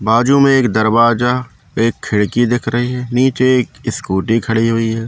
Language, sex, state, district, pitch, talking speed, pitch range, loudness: Hindi, male, Madhya Pradesh, Katni, 115 Hz, 175 wpm, 115-125 Hz, -14 LUFS